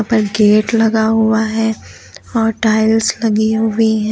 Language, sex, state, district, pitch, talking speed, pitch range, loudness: Hindi, female, Uttar Pradesh, Lucknow, 220 Hz, 145 wpm, 220-225 Hz, -14 LUFS